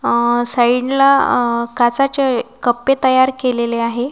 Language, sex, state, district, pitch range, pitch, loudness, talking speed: Marathi, female, Maharashtra, Washim, 240-265 Hz, 245 Hz, -15 LUFS, 115 wpm